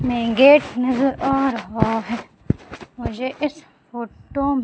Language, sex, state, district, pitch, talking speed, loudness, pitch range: Hindi, female, Madhya Pradesh, Umaria, 255 Hz, 130 wpm, -20 LUFS, 235-275 Hz